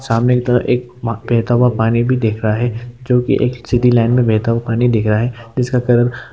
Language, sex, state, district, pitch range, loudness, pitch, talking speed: Hindi, male, Uttar Pradesh, Hamirpur, 115-125 Hz, -15 LUFS, 120 Hz, 255 wpm